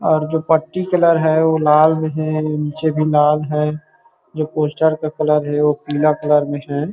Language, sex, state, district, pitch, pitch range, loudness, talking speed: Hindi, male, Chhattisgarh, Rajnandgaon, 155 Hz, 150-160 Hz, -17 LUFS, 190 wpm